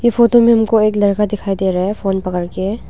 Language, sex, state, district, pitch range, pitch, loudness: Hindi, female, Arunachal Pradesh, Longding, 190-225 Hz, 205 Hz, -15 LUFS